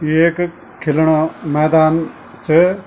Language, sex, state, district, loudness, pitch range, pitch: Garhwali, male, Uttarakhand, Tehri Garhwal, -15 LUFS, 155-170 Hz, 160 Hz